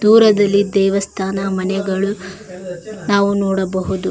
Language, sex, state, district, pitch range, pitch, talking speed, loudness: Kannada, female, Karnataka, Koppal, 190-200 Hz, 195 Hz, 75 wpm, -16 LUFS